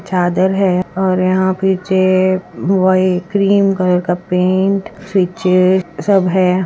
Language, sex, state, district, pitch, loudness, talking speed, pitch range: Hindi, female, Uttarakhand, Uttarkashi, 185 Hz, -14 LUFS, 125 wpm, 180-190 Hz